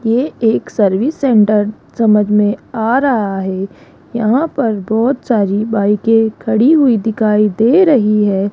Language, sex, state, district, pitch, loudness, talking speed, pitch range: Hindi, female, Rajasthan, Jaipur, 220 Hz, -13 LUFS, 150 wpm, 210-245 Hz